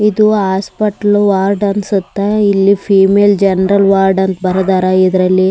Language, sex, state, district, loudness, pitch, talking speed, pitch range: Kannada, male, Karnataka, Raichur, -11 LUFS, 195 Hz, 130 wpm, 190-205 Hz